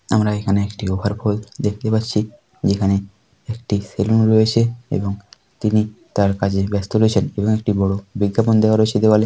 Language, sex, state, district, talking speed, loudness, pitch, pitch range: Bengali, male, West Bengal, Paschim Medinipur, 155 wpm, -19 LUFS, 105 Hz, 100-110 Hz